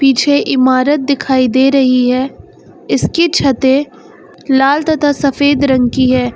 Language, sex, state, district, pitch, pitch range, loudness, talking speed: Hindi, female, Uttar Pradesh, Lucknow, 270 Hz, 260-285 Hz, -12 LUFS, 130 wpm